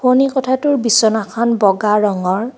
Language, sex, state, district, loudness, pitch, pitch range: Assamese, female, Assam, Kamrup Metropolitan, -15 LUFS, 230 Hz, 210-260 Hz